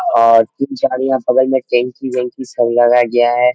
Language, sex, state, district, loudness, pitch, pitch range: Hindi, male, Jharkhand, Sahebganj, -14 LUFS, 125 Hz, 120-130 Hz